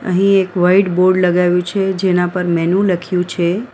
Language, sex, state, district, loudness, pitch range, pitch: Gujarati, female, Gujarat, Valsad, -14 LUFS, 180-190 Hz, 180 Hz